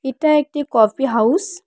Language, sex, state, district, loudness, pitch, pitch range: Bengali, female, West Bengal, Cooch Behar, -17 LUFS, 275 Hz, 240-305 Hz